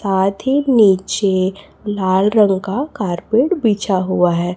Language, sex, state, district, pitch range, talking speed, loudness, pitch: Hindi, female, Chhattisgarh, Raipur, 185-220 Hz, 105 wpm, -16 LUFS, 195 Hz